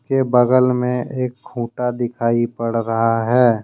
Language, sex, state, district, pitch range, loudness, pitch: Hindi, male, Jharkhand, Deoghar, 115-125 Hz, -18 LUFS, 125 Hz